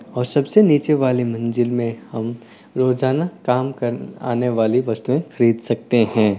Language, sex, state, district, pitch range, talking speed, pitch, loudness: Hindi, male, Telangana, Karimnagar, 115-130 Hz, 150 wpm, 120 Hz, -19 LUFS